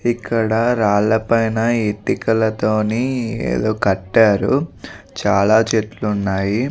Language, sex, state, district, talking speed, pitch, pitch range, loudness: Telugu, male, Andhra Pradesh, Visakhapatnam, 70 wpm, 110 Hz, 105-115 Hz, -17 LUFS